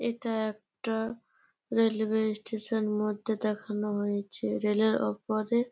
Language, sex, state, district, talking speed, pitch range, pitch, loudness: Bengali, female, West Bengal, Jalpaiguri, 105 wpm, 205-225 Hz, 215 Hz, -30 LUFS